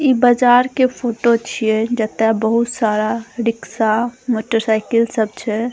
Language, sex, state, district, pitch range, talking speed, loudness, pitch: Maithili, female, Bihar, Saharsa, 220-245 Hz, 145 wpm, -17 LUFS, 230 Hz